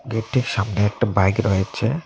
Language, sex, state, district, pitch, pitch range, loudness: Bengali, male, West Bengal, Cooch Behar, 110 Hz, 100-120 Hz, -21 LUFS